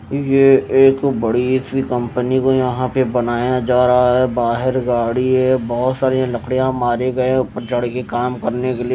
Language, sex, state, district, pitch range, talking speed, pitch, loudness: Hindi, male, Odisha, Malkangiri, 120-130 Hz, 180 wpm, 125 Hz, -16 LUFS